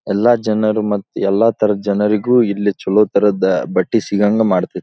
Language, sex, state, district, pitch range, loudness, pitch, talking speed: Kannada, male, Karnataka, Dharwad, 100-110 Hz, -15 LUFS, 105 Hz, 125 wpm